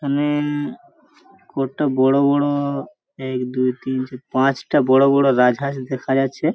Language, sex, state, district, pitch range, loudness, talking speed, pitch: Bengali, male, West Bengal, Purulia, 130-145 Hz, -19 LUFS, 110 wpm, 140 Hz